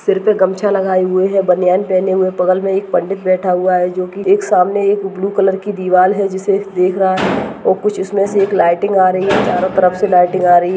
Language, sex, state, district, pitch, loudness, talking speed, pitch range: Hindi, male, Rajasthan, Nagaur, 190 Hz, -14 LUFS, 260 wpm, 185-200 Hz